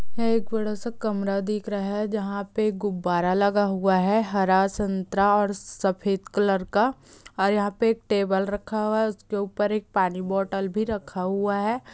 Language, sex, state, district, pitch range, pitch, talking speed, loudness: Hindi, female, Chhattisgarh, Bilaspur, 195-215 Hz, 205 Hz, 180 wpm, -25 LUFS